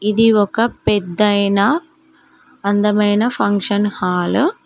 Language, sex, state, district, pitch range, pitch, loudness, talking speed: Telugu, female, Telangana, Mahabubabad, 200-245 Hz, 210 Hz, -16 LUFS, 105 wpm